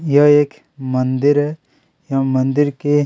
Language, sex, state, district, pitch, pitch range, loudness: Hindi, male, Chhattisgarh, Kabirdham, 145 Hz, 135-145 Hz, -16 LUFS